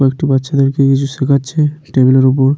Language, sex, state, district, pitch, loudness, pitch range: Bengali, male, West Bengal, Paschim Medinipur, 135 Hz, -13 LUFS, 135-140 Hz